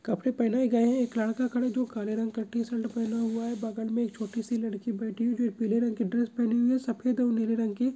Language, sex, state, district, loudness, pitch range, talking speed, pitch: Hindi, male, Bihar, Bhagalpur, -29 LUFS, 225-240 Hz, 295 wpm, 235 Hz